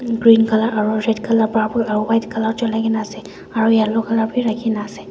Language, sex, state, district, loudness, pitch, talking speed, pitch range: Nagamese, female, Nagaland, Dimapur, -18 LUFS, 225 Hz, 225 wpm, 220-225 Hz